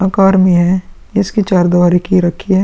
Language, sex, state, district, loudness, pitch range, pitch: Hindi, male, Uttar Pradesh, Muzaffarnagar, -12 LUFS, 180-195 Hz, 190 Hz